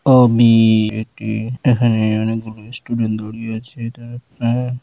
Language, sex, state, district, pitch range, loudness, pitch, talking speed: Bengali, male, West Bengal, Malda, 110-120 Hz, -17 LUFS, 115 Hz, 100 wpm